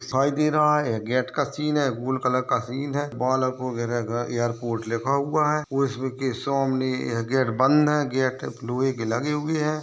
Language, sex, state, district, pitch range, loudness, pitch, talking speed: Hindi, male, Bihar, Purnia, 125-145 Hz, -24 LUFS, 130 Hz, 195 wpm